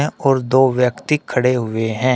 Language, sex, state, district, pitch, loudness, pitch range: Hindi, male, Uttar Pradesh, Shamli, 130 Hz, -17 LUFS, 125-135 Hz